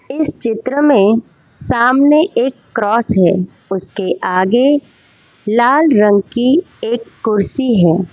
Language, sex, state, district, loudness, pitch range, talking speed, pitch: Hindi, female, Gujarat, Valsad, -13 LUFS, 200-270 Hz, 110 wpm, 235 Hz